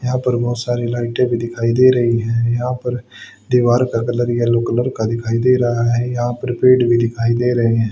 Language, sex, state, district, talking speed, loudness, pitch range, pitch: Hindi, male, Haryana, Charkhi Dadri, 225 wpm, -17 LUFS, 115-125 Hz, 120 Hz